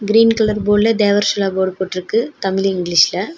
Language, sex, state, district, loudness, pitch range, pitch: Tamil, female, Tamil Nadu, Nilgiris, -16 LUFS, 190-215 Hz, 205 Hz